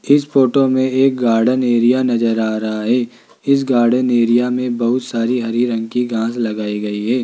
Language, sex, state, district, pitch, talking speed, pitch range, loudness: Hindi, male, Rajasthan, Jaipur, 120 Hz, 190 wpm, 115-125 Hz, -16 LUFS